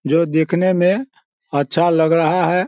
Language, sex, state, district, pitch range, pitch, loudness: Hindi, male, Bihar, Sitamarhi, 160-185 Hz, 170 Hz, -17 LUFS